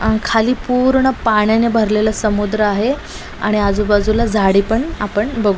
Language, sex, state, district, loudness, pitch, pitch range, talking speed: Marathi, female, Maharashtra, Nagpur, -15 LUFS, 220 Hz, 210-230 Hz, 150 wpm